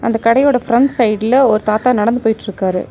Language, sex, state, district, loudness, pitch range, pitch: Tamil, female, Tamil Nadu, Nilgiris, -14 LUFS, 215-250 Hz, 230 Hz